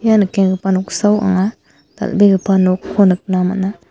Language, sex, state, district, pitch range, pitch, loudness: Garo, female, Meghalaya, West Garo Hills, 185-205 Hz, 195 Hz, -15 LUFS